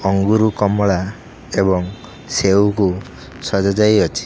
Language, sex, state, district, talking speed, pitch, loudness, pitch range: Odia, male, Odisha, Khordha, 85 wpm, 100 Hz, -16 LUFS, 95-105 Hz